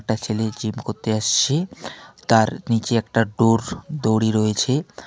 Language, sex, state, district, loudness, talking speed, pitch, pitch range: Bengali, male, West Bengal, Alipurduar, -21 LUFS, 130 wpm, 115 Hz, 110-120 Hz